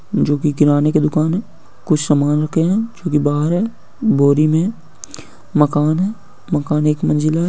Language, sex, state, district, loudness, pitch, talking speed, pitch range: Hindi, male, Bihar, Samastipur, -16 LUFS, 155 Hz, 175 wpm, 150-175 Hz